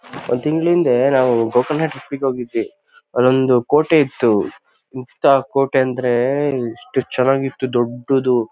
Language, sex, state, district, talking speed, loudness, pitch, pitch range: Kannada, male, Karnataka, Shimoga, 125 wpm, -17 LUFS, 130 Hz, 125-145 Hz